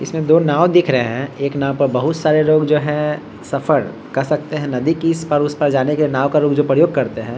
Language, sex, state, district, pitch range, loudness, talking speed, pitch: Hindi, male, Bihar, Vaishali, 140-155 Hz, -16 LUFS, 260 wpm, 150 Hz